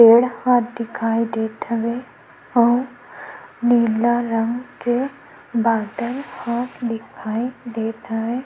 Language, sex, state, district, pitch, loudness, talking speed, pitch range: Chhattisgarhi, female, Chhattisgarh, Sukma, 235 Hz, -21 LUFS, 100 wpm, 230-245 Hz